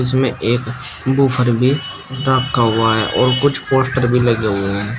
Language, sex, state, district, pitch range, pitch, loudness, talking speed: Hindi, male, Uttar Pradesh, Shamli, 115-130 Hz, 125 Hz, -16 LUFS, 170 wpm